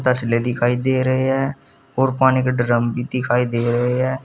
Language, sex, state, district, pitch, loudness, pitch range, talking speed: Hindi, male, Uttar Pradesh, Saharanpur, 125 Hz, -19 LUFS, 120-130 Hz, 195 wpm